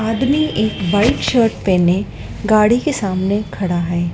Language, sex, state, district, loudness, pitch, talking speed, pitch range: Hindi, female, Madhya Pradesh, Dhar, -16 LUFS, 205 Hz, 145 wpm, 185-225 Hz